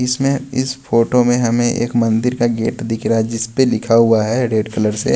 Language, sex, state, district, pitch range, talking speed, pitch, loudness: Hindi, male, Bihar, West Champaran, 115-125 Hz, 230 wpm, 115 Hz, -16 LUFS